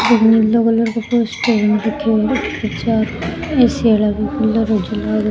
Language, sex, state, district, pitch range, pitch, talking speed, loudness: Rajasthani, female, Rajasthan, Churu, 215-230 Hz, 225 Hz, 90 wpm, -16 LUFS